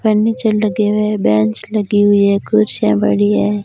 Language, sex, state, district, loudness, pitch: Hindi, female, Rajasthan, Bikaner, -14 LUFS, 205 Hz